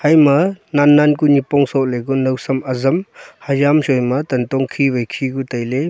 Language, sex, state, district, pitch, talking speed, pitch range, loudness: Wancho, male, Arunachal Pradesh, Longding, 135 Hz, 185 wpm, 130-145 Hz, -16 LUFS